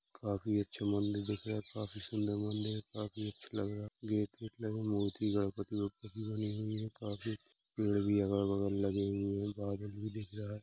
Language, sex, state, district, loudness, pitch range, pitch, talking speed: Hindi, male, Uttar Pradesh, Hamirpur, -38 LUFS, 100-110 Hz, 105 Hz, 220 wpm